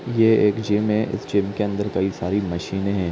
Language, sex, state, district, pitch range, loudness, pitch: Hindi, male, Chhattisgarh, Rajnandgaon, 95-105 Hz, -21 LUFS, 100 Hz